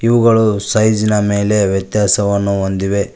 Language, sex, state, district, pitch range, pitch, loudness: Kannada, male, Karnataka, Koppal, 100-110 Hz, 105 Hz, -14 LUFS